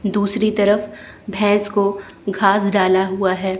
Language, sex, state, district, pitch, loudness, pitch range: Hindi, female, Chandigarh, Chandigarh, 200 Hz, -18 LUFS, 195-205 Hz